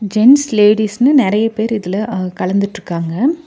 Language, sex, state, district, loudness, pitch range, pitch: Tamil, female, Tamil Nadu, Nilgiris, -14 LUFS, 195-235 Hz, 215 Hz